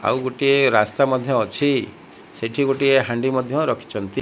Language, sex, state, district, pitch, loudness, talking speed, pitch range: Odia, female, Odisha, Malkangiri, 130 Hz, -20 LUFS, 140 wpm, 120-140 Hz